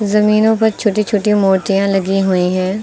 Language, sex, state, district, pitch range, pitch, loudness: Hindi, female, Uttar Pradesh, Lucknow, 195-210 Hz, 205 Hz, -14 LUFS